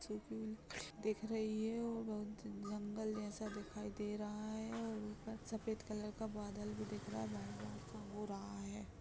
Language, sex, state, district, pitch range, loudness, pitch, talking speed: Hindi, female, Chhattisgarh, Rajnandgaon, 205-220 Hz, -46 LUFS, 210 Hz, 185 wpm